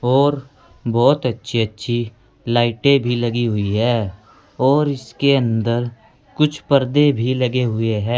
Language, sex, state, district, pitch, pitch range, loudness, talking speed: Hindi, male, Uttar Pradesh, Saharanpur, 120 Hz, 115-135 Hz, -18 LUFS, 130 wpm